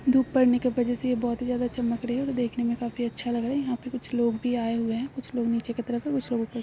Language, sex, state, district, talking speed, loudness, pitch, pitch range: Hindi, female, Jharkhand, Sahebganj, 345 wpm, -27 LUFS, 245 Hz, 235-255 Hz